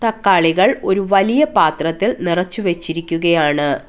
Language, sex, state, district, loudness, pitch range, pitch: Malayalam, female, Kerala, Kollam, -16 LUFS, 165-195 Hz, 180 Hz